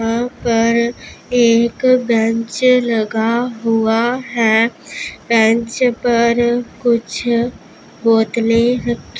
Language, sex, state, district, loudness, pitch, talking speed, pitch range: Hindi, female, Punjab, Pathankot, -15 LUFS, 235 Hz, 85 wpm, 230-240 Hz